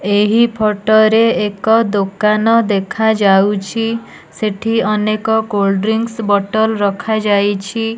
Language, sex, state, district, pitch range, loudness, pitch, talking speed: Odia, female, Odisha, Nuapada, 205-225 Hz, -14 LUFS, 215 Hz, 85 wpm